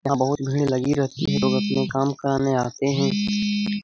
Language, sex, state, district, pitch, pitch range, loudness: Hindi, male, Bihar, Lakhisarai, 135 Hz, 130-145 Hz, -22 LUFS